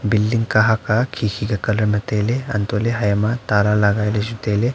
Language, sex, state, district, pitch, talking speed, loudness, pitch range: Wancho, male, Arunachal Pradesh, Longding, 105 Hz, 215 wpm, -19 LUFS, 105-115 Hz